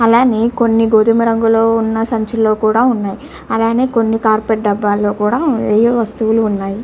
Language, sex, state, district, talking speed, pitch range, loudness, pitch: Telugu, female, Andhra Pradesh, Chittoor, 115 wpm, 215-230 Hz, -14 LUFS, 225 Hz